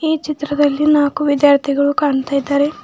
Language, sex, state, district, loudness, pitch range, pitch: Kannada, female, Karnataka, Bidar, -15 LUFS, 280-295 Hz, 290 Hz